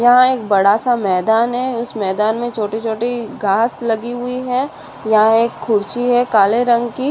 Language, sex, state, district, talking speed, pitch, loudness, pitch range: Hindi, female, Maharashtra, Aurangabad, 185 wpm, 235 Hz, -16 LUFS, 220-245 Hz